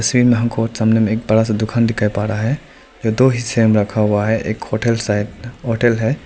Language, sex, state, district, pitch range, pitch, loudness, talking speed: Hindi, male, Arunachal Pradesh, Lower Dibang Valley, 110-120 Hz, 110 Hz, -17 LUFS, 240 wpm